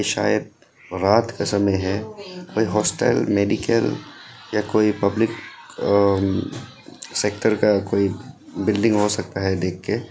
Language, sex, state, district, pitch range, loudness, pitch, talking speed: Hindi, male, Arunachal Pradesh, Lower Dibang Valley, 100-110 Hz, -21 LUFS, 105 Hz, 120 wpm